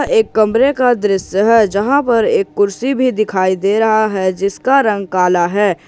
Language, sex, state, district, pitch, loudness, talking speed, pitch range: Hindi, male, Jharkhand, Ranchi, 210 Hz, -14 LUFS, 185 wpm, 195-240 Hz